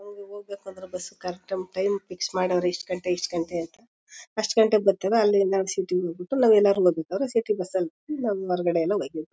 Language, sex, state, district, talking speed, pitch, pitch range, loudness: Kannada, female, Karnataka, Mysore, 180 wpm, 190 Hz, 180-205 Hz, -25 LUFS